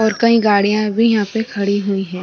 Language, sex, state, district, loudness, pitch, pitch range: Hindi, female, Bihar, Sitamarhi, -16 LUFS, 210 Hz, 200-225 Hz